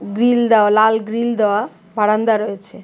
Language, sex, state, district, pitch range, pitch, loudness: Bengali, female, Tripura, West Tripura, 205-225 Hz, 215 Hz, -16 LUFS